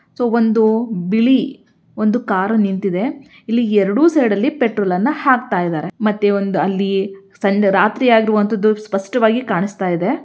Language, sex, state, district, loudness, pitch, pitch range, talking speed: Kannada, female, Karnataka, Belgaum, -16 LUFS, 215 Hz, 195-240 Hz, 125 wpm